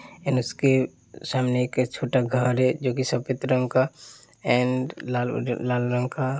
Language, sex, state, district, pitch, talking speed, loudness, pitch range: Hindi, male, Uttar Pradesh, Hamirpur, 130 Hz, 160 wpm, -25 LUFS, 125-130 Hz